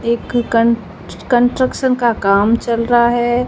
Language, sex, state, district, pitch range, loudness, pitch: Hindi, female, Rajasthan, Jaisalmer, 230-245 Hz, -15 LUFS, 240 Hz